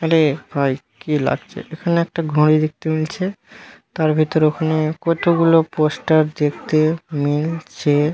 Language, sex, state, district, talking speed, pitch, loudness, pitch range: Bengali, male, West Bengal, Malda, 125 wpm, 155 Hz, -18 LUFS, 150-165 Hz